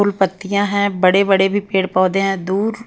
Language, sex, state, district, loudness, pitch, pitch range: Hindi, female, Himachal Pradesh, Shimla, -16 LUFS, 195 Hz, 190-205 Hz